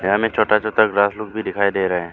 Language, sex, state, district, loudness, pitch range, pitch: Hindi, male, Arunachal Pradesh, Lower Dibang Valley, -18 LUFS, 100-110 Hz, 105 Hz